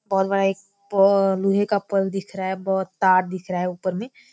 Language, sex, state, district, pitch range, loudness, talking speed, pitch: Hindi, female, Bihar, Kishanganj, 190-195 Hz, -22 LUFS, 235 wpm, 195 Hz